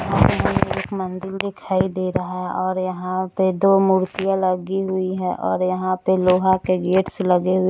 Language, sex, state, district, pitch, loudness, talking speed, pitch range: Hindi, female, Maharashtra, Nagpur, 185 Hz, -20 LUFS, 210 wpm, 185-190 Hz